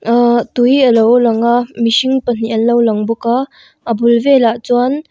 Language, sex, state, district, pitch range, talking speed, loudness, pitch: Mizo, female, Mizoram, Aizawl, 230-245 Hz, 190 wpm, -12 LUFS, 235 Hz